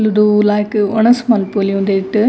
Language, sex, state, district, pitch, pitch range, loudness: Tulu, female, Karnataka, Dakshina Kannada, 210 Hz, 200-220 Hz, -13 LUFS